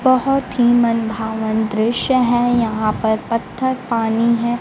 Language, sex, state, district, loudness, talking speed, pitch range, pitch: Hindi, female, Bihar, Kaimur, -17 LUFS, 130 wpm, 220-245 Hz, 235 Hz